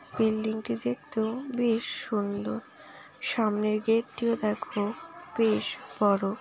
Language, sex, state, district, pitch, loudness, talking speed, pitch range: Bengali, female, West Bengal, Paschim Medinipur, 220 Hz, -29 LUFS, 95 wpm, 210-235 Hz